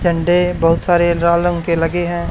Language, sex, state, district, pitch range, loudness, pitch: Hindi, male, Haryana, Charkhi Dadri, 170-175 Hz, -15 LUFS, 175 Hz